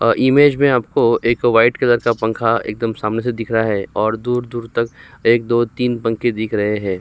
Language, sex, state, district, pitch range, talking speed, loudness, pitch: Hindi, male, Uttar Pradesh, Jyotiba Phule Nagar, 110-120 Hz, 220 wpm, -17 LUFS, 115 Hz